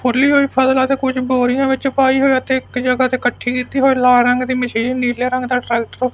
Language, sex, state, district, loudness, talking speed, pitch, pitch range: Punjabi, male, Punjab, Fazilka, -15 LUFS, 205 wpm, 255 Hz, 250-265 Hz